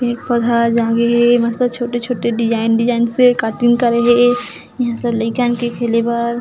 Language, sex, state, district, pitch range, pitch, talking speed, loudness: Chhattisgarhi, female, Chhattisgarh, Jashpur, 235-245 Hz, 235 Hz, 160 wpm, -15 LUFS